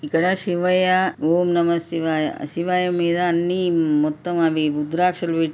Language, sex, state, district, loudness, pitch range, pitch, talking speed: Telugu, female, Telangana, Nalgonda, -20 LUFS, 160-180 Hz, 170 Hz, 130 wpm